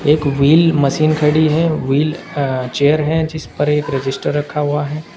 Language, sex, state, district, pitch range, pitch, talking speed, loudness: Hindi, male, Uttar Pradesh, Saharanpur, 140-155 Hz, 150 Hz, 160 wpm, -16 LUFS